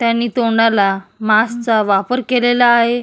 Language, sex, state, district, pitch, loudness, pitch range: Marathi, female, Maharashtra, Solapur, 230 Hz, -14 LUFS, 215-240 Hz